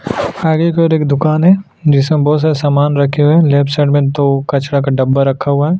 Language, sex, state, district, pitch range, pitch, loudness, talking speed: Hindi, male, Chhattisgarh, Sukma, 140-155 Hz, 145 Hz, -12 LUFS, 240 wpm